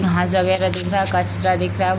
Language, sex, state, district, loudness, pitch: Hindi, female, Bihar, Sitamarhi, -19 LUFS, 95 Hz